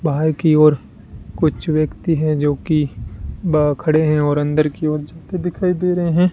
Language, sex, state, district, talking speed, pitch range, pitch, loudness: Hindi, male, Rajasthan, Bikaner, 200 wpm, 150-165 Hz, 155 Hz, -18 LUFS